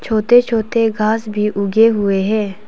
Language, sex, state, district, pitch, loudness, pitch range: Hindi, female, Arunachal Pradesh, Papum Pare, 215 Hz, -15 LUFS, 210-225 Hz